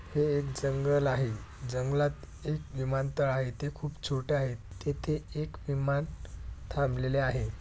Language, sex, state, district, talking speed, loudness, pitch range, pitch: Marathi, male, Maharashtra, Dhule, 135 wpm, -32 LUFS, 125-145 Hz, 140 Hz